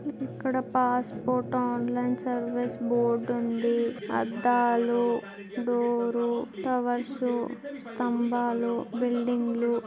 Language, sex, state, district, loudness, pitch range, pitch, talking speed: Telugu, female, Telangana, Karimnagar, -28 LUFS, 235-245 Hz, 240 Hz, 75 wpm